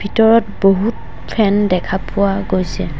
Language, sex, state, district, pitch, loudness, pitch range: Assamese, female, Assam, Sonitpur, 200 Hz, -16 LUFS, 190-215 Hz